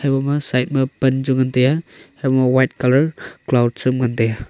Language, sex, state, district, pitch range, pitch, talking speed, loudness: Wancho, male, Arunachal Pradesh, Longding, 125-135 Hz, 130 Hz, 160 wpm, -18 LUFS